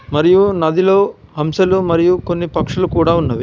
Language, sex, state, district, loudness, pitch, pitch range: Telugu, male, Telangana, Hyderabad, -14 LUFS, 175 Hz, 165-185 Hz